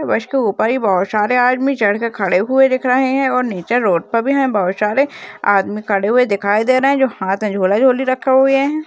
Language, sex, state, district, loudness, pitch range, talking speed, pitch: Hindi, female, Rajasthan, Nagaur, -15 LUFS, 205-265 Hz, 245 wpm, 245 Hz